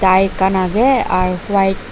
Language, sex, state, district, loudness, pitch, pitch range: Chakma, female, Tripura, Dhalai, -15 LUFS, 190 Hz, 185-195 Hz